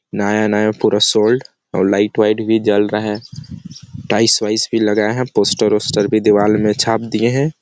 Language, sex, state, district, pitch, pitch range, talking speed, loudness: Hindi, male, Chhattisgarh, Sarguja, 110 Hz, 105-115 Hz, 190 wpm, -15 LUFS